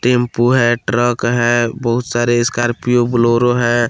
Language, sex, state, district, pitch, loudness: Hindi, male, Jharkhand, Palamu, 120 Hz, -15 LUFS